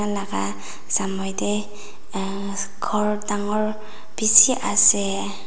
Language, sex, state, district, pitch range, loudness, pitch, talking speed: Nagamese, female, Nagaland, Dimapur, 190-210 Hz, -20 LUFS, 205 Hz, 75 wpm